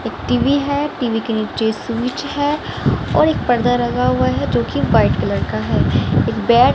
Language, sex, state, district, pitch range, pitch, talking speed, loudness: Hindi, female, Haryana, Charkhi Dadri, 230-285 Hz, 245 Hz, 195 wpm, -17 LUFS